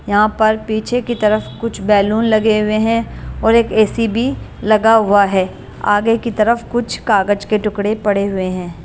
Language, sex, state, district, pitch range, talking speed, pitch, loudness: Hindi, female, Punjab, Kapurthala, 205-225 Hz, 190 wpm, 215 Hz, -15 LUFS